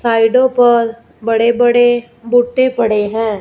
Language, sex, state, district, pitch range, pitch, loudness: Hindi, female, Punjab, Fazilka, 225-245 Hz, 235 Hz, -13 LUFS